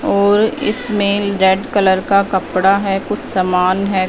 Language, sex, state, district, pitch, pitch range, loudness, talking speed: Hindi, female, Punjab, Fazilka, 195 Hz, 190-205 Hz, -15 LUFS, 145 wpm